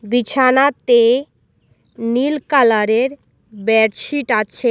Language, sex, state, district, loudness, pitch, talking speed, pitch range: Bengali, female, Assam, Hailakandi, -15 LUFS, 245 Hz, 65 wpm, 225-270 Hz